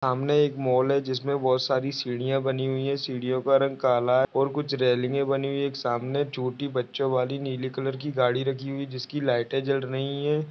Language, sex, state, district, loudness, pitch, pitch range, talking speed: Hindi, male, Maharashtra, Pune, -26 LUFS, 135 Hz, 130-140 Hz, 225 wpm